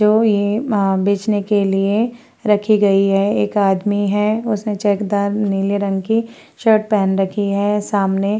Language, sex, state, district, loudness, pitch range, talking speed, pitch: Hindi, female, Uttar Pradesh, Varanasi, -17 LUFS, 200-210 Hz, 155 wpm, 205 Hz